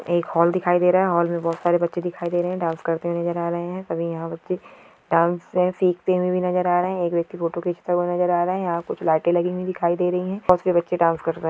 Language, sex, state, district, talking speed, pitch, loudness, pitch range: Hindi, female, Uttar Pradesh, Deoria, 310 wpm, 175 Hz, -22 LUFS, 170-180 Hz